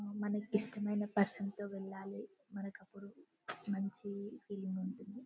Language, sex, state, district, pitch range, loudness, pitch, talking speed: Telugu, male, Telangana, Karimnagar, 200-210 Hz, -40 LUFS, 205 Hz, 105 wpm